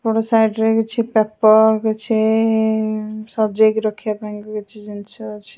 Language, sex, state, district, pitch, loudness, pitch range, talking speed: Odia, female, Odisha, Khordha, 220 Hz, -17 LUFS, 215-220 Hz, 150 wpm